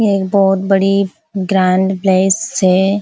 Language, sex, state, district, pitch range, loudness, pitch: Hindi, female, Uttar Pradesh, Ghazipur, 190-195 Hz, -14 LUFS, 195 Hz